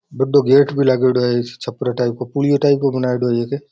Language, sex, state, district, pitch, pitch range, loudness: Rajasthani, male, Rajasthan, Nagaur, 130 Hz, 125-140 Hz, -17 LUFS